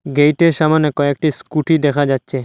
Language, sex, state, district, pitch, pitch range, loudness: Bengali, male, Assam, Hailakandi, 145 Hz, 140-155 Hz, -15 LUFS